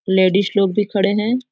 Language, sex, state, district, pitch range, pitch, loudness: Hindi, female, Chhattisgarh, Raigarh, 195-210 Hz, 200 Hz, -17 LUFS